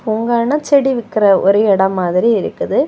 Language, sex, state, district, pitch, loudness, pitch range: Tamil, female, Tamil Nadu, Kanyakumari, 220 Hz, -14 LUFS, 195-240 Hz